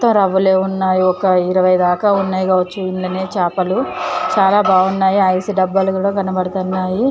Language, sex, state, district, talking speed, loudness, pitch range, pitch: Telugu, female, Andhra Pradesh, Chittoor, 110 wpm, -15 LUFS, 185-195 Hz, 190 Hz